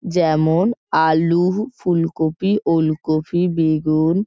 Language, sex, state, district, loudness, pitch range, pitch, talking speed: Bengali, female, West Bengal, Kolkata, -18 LUFS, 160-180 Hz, 165 Hz, 85 wpm